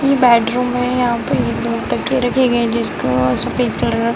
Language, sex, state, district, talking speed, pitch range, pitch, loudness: Hindi, female, Bihar, Sitamarhi, 200 wpm, 230-250 Hz, 240 Hz, -16 LUFS